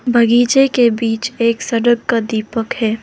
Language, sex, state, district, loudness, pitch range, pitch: Hindi, female, Arunachal Pradesh, Lower Dibang Valley, -15 LUFS, 225-240 Hz, 230 Hz